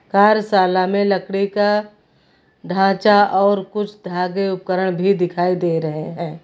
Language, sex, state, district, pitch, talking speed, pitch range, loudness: Hindi, female, Uttar Pradesh, Lucknow, 195 Hz, 130 wpm, 180-205 Hz, -18 LUFS